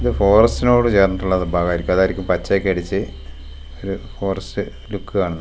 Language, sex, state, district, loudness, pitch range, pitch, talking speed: Malayalam, male, Kerala, Wayanad, -18 LUFS, 85-100 Hz, 95 Hz, 145 wpm